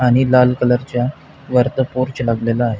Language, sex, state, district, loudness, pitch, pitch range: Marathi, male, Maharashtra, Pune, -17 LUFS, 125 Hz, 120-130 Hz